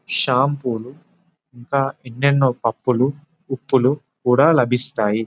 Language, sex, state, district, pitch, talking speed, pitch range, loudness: Telugu, male, Telangana, Nalgonda, 130 Hz, 90 wpm, 125-140 Hz, -18 LUFS